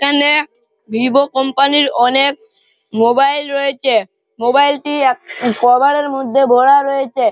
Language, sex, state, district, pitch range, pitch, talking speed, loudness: Bengali, male, West Bengal, Malda, 250-285 Hz, 275 Hz, 125 wpm, -13 LUFS